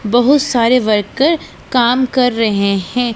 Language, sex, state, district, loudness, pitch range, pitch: Hindi, female, Punjab, Pathankot, -14 LUFS, 220-255 Hz, 240 Hz